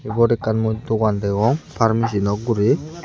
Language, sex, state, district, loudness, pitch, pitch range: Chakma, male, Tripura, Unakoti, -19 LUFS, 110 Hz, 105-115 Hz